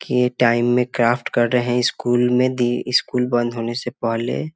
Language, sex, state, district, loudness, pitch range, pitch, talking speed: Hindi, male, Bihar, Muzaffarpur, -19 LUFS, 120-125 Hz, 120 Hz, 200 wpm